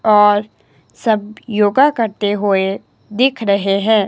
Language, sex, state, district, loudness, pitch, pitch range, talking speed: Hindi, male, Himachal Pradesh, Shimla, -15 LUFS, 210 Hz, 205-220 Hz, 115 wpm